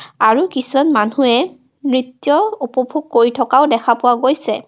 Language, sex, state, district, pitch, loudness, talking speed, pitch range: Assamese, female, Assam, Kamrup Metropolitan, 255 Hz, -15 LUFS, 130 wpm, 245-285 Hz